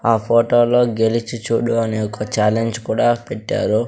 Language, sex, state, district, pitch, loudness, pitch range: Telugu, male, Andhra Pradesh, Sri Satya Sai, 115 Hz, -18 LUFS, 110-120 Hz